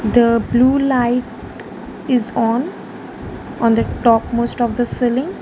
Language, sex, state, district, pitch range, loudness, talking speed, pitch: English, female, Gujarat, Valsad, 230-250 Hz, -16 LUFS, 135 wpm, 240 Hz